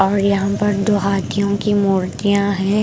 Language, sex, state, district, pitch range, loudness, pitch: Hindi, female, Punjab, Pathankot, 195-205 Hz, -17 LUFS, 200 Hz